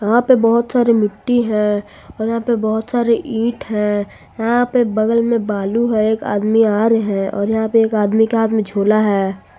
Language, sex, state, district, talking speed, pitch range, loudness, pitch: Hindi, female, Jharkhand, Garhwa, 205 wpm, 210-235 Hz, -16 LUFS, 220 Hz